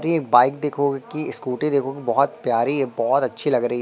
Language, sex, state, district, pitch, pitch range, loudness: Hindi, male, Madhya Pradesh, Katni, 140 Hz, 120-145 Hz, -21 LUFS